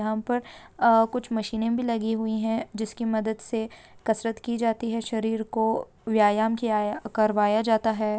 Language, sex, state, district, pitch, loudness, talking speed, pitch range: Hindi, female, West Bengal, Dakshin Dinajpur, 225 Hz, -26 LUFS, 170 wpm, 220-230 Hz